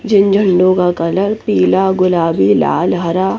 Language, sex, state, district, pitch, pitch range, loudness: Hindi, female, Chandigarh, Chandigarh, 185 Hz, 170-195 Hz, -13 LUFS